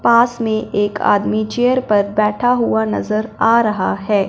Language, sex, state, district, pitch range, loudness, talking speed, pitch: Hindi, male, Punjab, Fazilka, 205-235 Hz, -16 LUFS, 165 wpm, 215 Hz